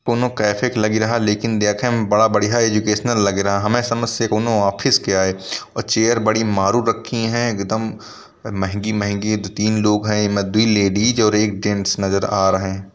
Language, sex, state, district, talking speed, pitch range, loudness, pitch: Hindi, male, Uttar Pradesh, Varanasi, 195 wpm, 100-115 Hz, -18 LUFS, 105 Hz